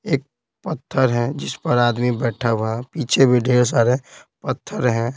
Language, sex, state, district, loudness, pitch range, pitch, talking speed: Hindi, male, Bihar, Patna, -20 LUFS, 120-135 Hz, 125 Hz, 175 wpm